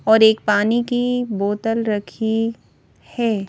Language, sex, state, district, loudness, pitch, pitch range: Hindi, female, Madhya Pradesh, Bhopal, -19 LUFS, 220 Hz, 210-230 Hz